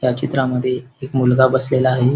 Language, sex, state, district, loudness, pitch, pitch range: Marathi, male, Maharashtra, Sindhudurg, -17 LUFS, 130 Hz, 125-130 Hz